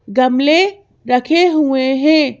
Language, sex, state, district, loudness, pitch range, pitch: Hindi, female, Madhya Pradesh, Bhopal, -13 LUFS, 260-320 Hz, 285 Hz